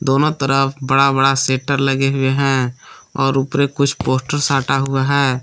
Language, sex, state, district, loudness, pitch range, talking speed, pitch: Hindi, male, Jharkhand, Palamu, -16 LUFS, 135-140 Hz, 175 wpm, 135 Hz